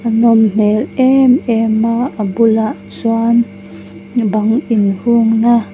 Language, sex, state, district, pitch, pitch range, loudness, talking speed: Mizo, female, Mizoram, Aizawl, 225 Hz, 215-235 Hz, -13 LUFS, 145 wpm